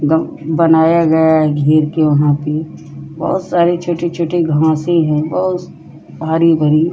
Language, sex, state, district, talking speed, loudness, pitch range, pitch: Hindi, female, Bihar, Vaishali, 140 wpm, -14 LUFS, 155-170 Hz, 160 Hz